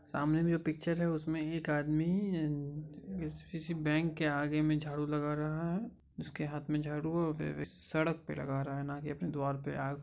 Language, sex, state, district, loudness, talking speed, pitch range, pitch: Hindi, male, Bihar, Madhepura, -36 LUFS, 185 wpm, 150-165 Hz, 155 Hz